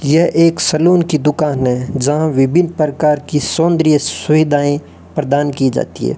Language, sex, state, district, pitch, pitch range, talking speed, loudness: Hindi, male, Rajasthan, Bikaner, 150 Hz, 145-160 Hz, 155 wpm, -14 LUFS